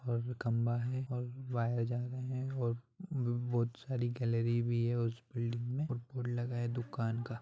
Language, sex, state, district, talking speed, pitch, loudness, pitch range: Hindi, male, West Bengal, Purulia, 170 wpm, 120 Hz, -37 LUFS, 120-125 Hz